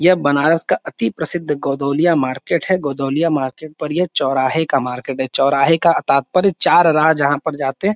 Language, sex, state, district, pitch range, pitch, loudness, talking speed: Hindi, male, Uttar Pradesh, Varanasi, 135-165 Hz, 150 Hz, -16 LUFS, 190 wpm